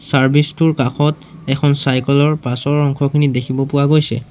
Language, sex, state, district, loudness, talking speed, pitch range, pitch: Assamese, male, Assam, Sonitpur, -15 LUFS, 155 wpm, 135-150 Hz, 140 Hz